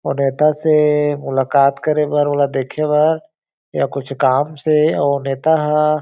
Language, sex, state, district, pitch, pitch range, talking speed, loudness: Chhattisgarhi, male, Chhattisgarh, Jashpur, 150 Hz, 140-155 Hz, 170 wpm, -16 LUFS